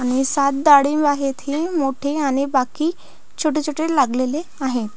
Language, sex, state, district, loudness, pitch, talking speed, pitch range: Marathi, female, Maharashtra, Pune, -19 LUFS, 280 Hz, 135 wpm, 265-305 Hz